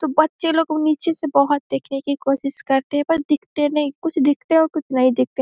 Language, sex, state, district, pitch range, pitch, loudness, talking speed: Hindi, female, Bihar, Saharsa, 275-315 Hz, 295 Hz, -20 LUFS, 245 wpm